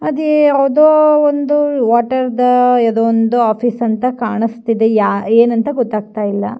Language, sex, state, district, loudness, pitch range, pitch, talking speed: Kannada, female, Karnataka, Shimoga, -13 LUFS, 225-275 Hz, 240 Hz, 100 wpm